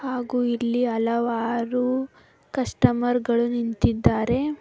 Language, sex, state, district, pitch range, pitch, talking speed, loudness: Kannada, female, Karnataka, Bangalore, 235-250 Hz, 240 Hz, 80 wpm, -23 LUFS